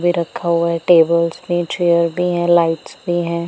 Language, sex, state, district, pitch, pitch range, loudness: Hindi, female, Punjab, Pathankot, 170 Hz, 170-175 Hz, -16 LUFS